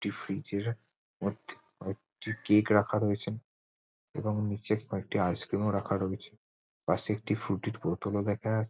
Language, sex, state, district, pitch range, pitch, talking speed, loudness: Bengali, male, West Bengal, Jhargram, 100-110 Hz, 105 Hz, 145 wpm, -32 LUFS